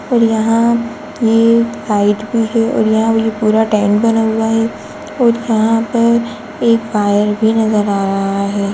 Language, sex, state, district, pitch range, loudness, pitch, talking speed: Hindi, female, Uttarakhand, Tehri Garhwal, 210-230 Hz, -14 LUFS, 220 Hz, 165 wpm